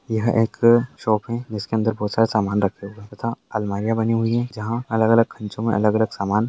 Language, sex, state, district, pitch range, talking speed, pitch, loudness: Hindi, male, Bihar, Jamui, 105-115 Hz, 220 wpm, 110 Hz, -21 LUFS